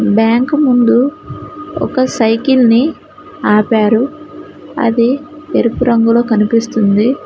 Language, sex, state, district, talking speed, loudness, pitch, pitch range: Telugu, female, Telangana, Mahabubabad, 85 wpm, -12 LUFS, 245 Hz, 230-300 Hz